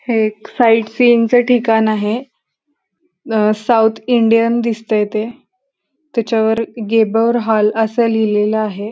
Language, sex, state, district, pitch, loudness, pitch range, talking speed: Marathi, female, Maharashtra, Pune, 225 Hz, -15 LUFS, 220-240 Hz, 120 wpm